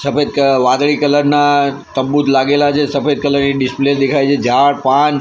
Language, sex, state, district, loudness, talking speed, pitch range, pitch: Gujarati, male, Gujarat, Gandhinagar, -13 LUFS, 195 wpm, 135-145 Hz, 140 Hz